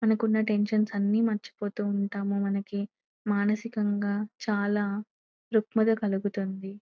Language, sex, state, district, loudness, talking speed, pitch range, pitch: Telugu, female, Telangana, Nalgonda, -28 LUFS, 90 wpm, 200-215 Hz, 205 Hz